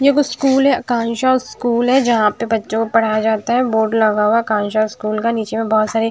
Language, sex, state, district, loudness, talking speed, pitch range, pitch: Hindi, female, Odisha, Sambalpur, -16 LUFS, 235 wpm, 215-245 Hz, 225 Hz